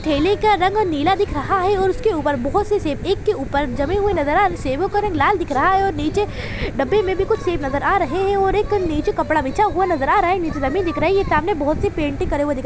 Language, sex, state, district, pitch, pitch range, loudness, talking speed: Hindi, female, Chhattisgarh, Bilaspur, 375 Hz, 305-400 Hz, -19 LUFS, 300 wpm